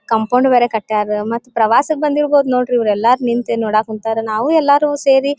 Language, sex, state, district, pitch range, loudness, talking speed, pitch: Kannada, female, Karnataka, Dharwad, 220-280 Hz, -15 LUFS, 155 wpm, 240 Hz